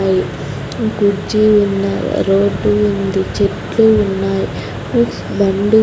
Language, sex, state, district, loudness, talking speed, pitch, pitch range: Telugu, female, Andhra Pradesh, Sri Satya Sai, -15 LUFS, 80 wpm, 200 Hz, 195-210 Hz